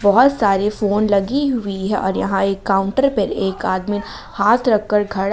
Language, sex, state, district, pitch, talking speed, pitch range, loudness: Hindi, female, Jharkhand, Palamu, 205 Hz, 190 wpm, 195-215 Hz, -18 LUFS